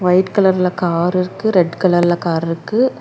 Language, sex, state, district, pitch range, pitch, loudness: Tamil, female, Karnataka, Bangalore, 175-190 Hz, 180 Hz, -16 LUFS